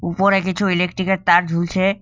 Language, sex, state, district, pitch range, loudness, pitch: Bengali, male, West Bengal, Cooch Behar, 175-190 Hz, -18 LUFS, 185 Hz